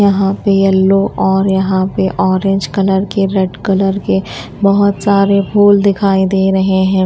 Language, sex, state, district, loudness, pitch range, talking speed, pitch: Hindi, female, Odisha, Malkangiri, -12 LUFS, 190-200 Hz, 160 wpm, 195 Hz